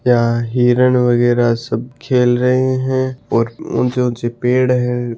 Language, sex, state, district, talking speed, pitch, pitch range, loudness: Hindi, male, Rajasthan, Churu, 140 wpm, 125 Hz, 120-125 Hz, -16 LUFS